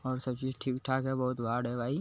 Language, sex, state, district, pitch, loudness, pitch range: Hindi, male, Bihar, Lakhisarai, 130 Hz, -33 LUFS, 125-130 Hz